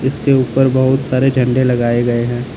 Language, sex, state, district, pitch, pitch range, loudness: Hindi, male, Jharkhand, Deoghar, 130 Hz, 120-130 Hz, -14 LUFS